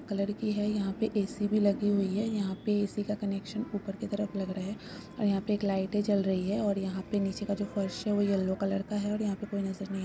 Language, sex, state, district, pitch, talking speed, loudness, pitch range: Hindi, female, West Bengal, Purulia, 205 Hz, 290 wpm, -31 LUFS, 195-210 Hz